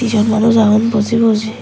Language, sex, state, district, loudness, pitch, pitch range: Chakma, female, Tripura, West Tripura, -13 LUFS, 220 Hz, 215-230 Hz